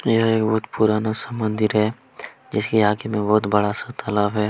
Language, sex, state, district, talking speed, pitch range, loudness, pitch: Hindi, male, Chhattisgarh, Kabirdham, 200 wpm, 105-110 Hz, -21 LUFS, 110 Hz